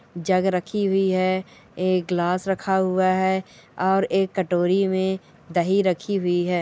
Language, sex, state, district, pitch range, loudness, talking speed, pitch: Hindi, female, Bihar, Bhagalpur, 180-190 Hz, -22 LUFS, 155 wpm, 185 Hz